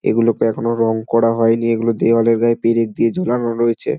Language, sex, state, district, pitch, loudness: Bengali, male, West Bengal, Dakshin Dinajpur, 115 Hz, -16 LUFS